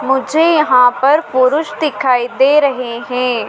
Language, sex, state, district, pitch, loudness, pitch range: Hindi, female, Madhya Pradesh, Dhar, 265 Hz, -13 LUFS, 250-295 Hz